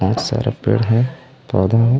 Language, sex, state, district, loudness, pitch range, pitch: Chhattisgarhi, male, Chhattisgarh, Raigarh, -18 LUFS, 115-125 Hz, 120 Hz